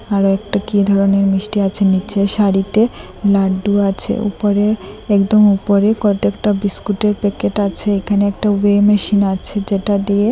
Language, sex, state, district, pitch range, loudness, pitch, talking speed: Bengali, female, Assam, Hailakandi, 195-210 Hz, -15 LUFS, 200 Hz, 140 wpm